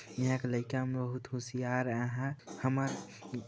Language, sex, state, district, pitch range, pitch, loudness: Hindi, male, Chhattisgarh, Balrampur, 120-130 Hz, 125 Hz, -36 LUFS